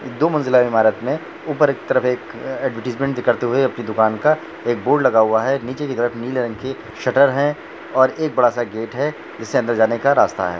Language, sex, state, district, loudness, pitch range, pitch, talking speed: Hindi, male, Jharkhand, Jamtara, -19 LUFS, 115-135 Hz, 125 Hz, 230 wpm